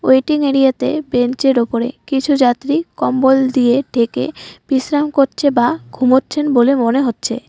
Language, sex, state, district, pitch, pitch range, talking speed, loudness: Bengali, female, West Bengal, Alipurduar, 265 Hz, 250-280 Hz, 130 wpm, -15 LUFS